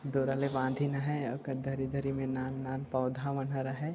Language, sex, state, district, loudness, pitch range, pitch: Chhattisgarhi, male, Chhattisgarh, Sarguja, -34 LUFS, 130-140 Hz, 135 Hz